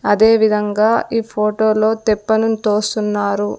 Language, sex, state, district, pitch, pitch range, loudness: Telugu, female, Andhra Pradesh, Sri Satya Sai, 215 Hz, 210-220 Hz, -16 LUFS